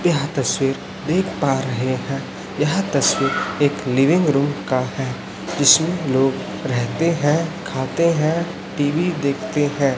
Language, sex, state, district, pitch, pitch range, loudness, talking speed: Hindi, male, Chhattisgarh, Raipur, 145 Hz, 130-165 Hz, -20 LUFS, 130 wpm